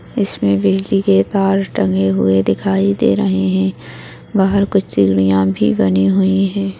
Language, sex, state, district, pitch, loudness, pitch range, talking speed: Hindi, female, Maharashtra, Aurangabad, 95 Hz, -15 LUFS, 95-100 Hz, 150 wpm